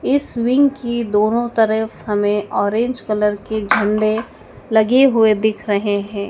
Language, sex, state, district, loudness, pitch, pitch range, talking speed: Hindi, female, Madhya Pradesh, Dhar, -17 LUFS, 220 Hz, 210-235 Hz, 145 wpm